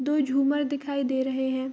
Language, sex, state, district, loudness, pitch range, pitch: Hindi, female, Bihar, Darbhanga, -26 LUFS, 265-285 Hz, 275 Hz